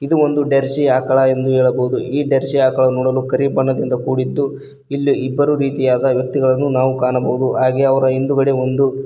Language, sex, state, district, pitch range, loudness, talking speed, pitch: Kannada, male, Karnataka, Koppal, 130-140 Hz, -16 LUFS, 145 wpm, 135 Hz